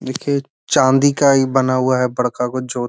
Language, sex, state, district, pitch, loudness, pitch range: Magahi, male, Bihar, Gaya, 130 Hz, -16 LUFS, 125-140 Hz